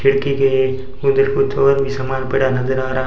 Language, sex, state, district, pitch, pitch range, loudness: Hindi, male, Rajasthan, Bikaner, 135 Hz, 130-135 Hz, -17 LUFS